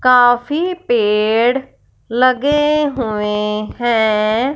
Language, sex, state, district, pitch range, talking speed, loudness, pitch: Hindi, female, Punjab, Fazilka, 215-290 Hz, 65 wpm, -15 LUFS, 245 Hz